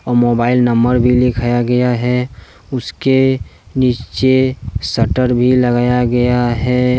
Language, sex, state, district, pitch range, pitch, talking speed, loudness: Hindi, male, Jharkhand, Deoghar, 120-125 Hz, 125 Hz, 110 wpm, -14 LUFS